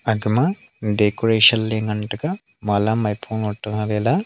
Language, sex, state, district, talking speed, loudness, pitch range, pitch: Wancho, male, Arunachal Pradesh, Longding, 140 wpm, -20 LUFS, 105-115 Hz, 110 Hz